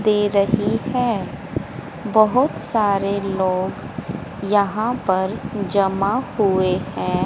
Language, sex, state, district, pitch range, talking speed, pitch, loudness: Hindi, female, Haryana, Jhajjar, 195-215 Hz, 90 wpm, 200 Hz, -20 LUFS